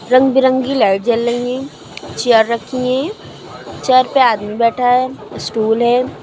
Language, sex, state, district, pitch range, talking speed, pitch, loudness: Hindi, female, Uttar Pradesh, Lucknow, 230-260 Hz, 145 wpm, 245 Hz, -15 LUFS